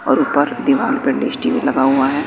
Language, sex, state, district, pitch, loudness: Hindi, male, Bihar, West Champaran, 260 Hz, -16 LUFS